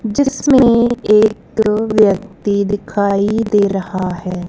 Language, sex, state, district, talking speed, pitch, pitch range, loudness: Hindi, female, Punjab, Kapurthala, 95 wpm, 210 Hz, 200-220 Hz, -14 LUFS